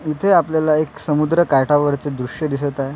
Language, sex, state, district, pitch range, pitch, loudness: Marathi, male, Maharashtra, Sindhudurg, 140-155 Hz, 150 Hz, -18 LUFS